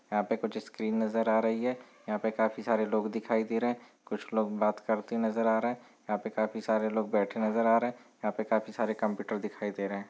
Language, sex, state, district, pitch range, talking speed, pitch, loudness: Hindi, male, Chhattisgarh, Bilaspur, 110-115 Hz, 260 wpm, 110 Hz, -31 LUFS